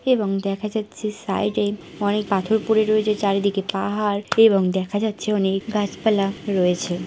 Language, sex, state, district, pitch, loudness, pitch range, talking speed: Bengali, female, West Bengal, Purulia, 205 Hz, -21 LUFS, 195-215 Hz, 155 wpm